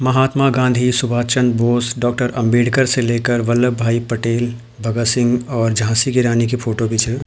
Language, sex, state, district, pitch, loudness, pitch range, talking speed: Garhwali, male, Uttarakhand, Tehri Garhwal, 120 Hz, -16 LUFS, 115-125 Hz, 180 wpm